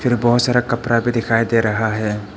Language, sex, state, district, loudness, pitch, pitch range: Hindi, male, Arunachal Pradesh, Papum Pare, -17 LUFS, 115 Hz, 110-120 Hz